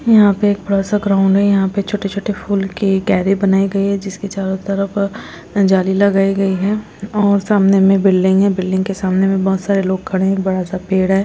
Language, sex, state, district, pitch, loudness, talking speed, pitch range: Hindi, female, Chhattisgarh, Rajnandgaon, 195 Hz, -15 LUFS, 215 wpm, 190-200 Hz